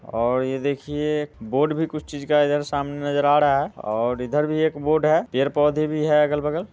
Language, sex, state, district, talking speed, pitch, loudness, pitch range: Hindi, male, Bihar, Muzaffarpur, 240 wpm, 145 Hz, -22 LUFS, 140-150 Hz